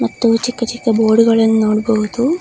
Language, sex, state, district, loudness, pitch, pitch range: Kannada, female, Karnataka, Dakshina Kannada, -14 LUFS, 225 Hz, 220-235 Hz